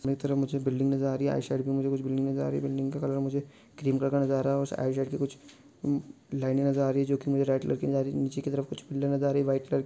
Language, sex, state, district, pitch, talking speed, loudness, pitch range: Hindi, male, Chhattisgarh, Sukma, 135 Hz, 230 wpm, -29 LUFS, 135-140 Hz